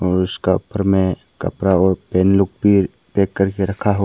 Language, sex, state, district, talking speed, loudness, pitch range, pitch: Hindi, male, Arunachal Pradesh, Papum Pare, 180 wpm, -18 LUFS, 95-100 Hz, 95 Hz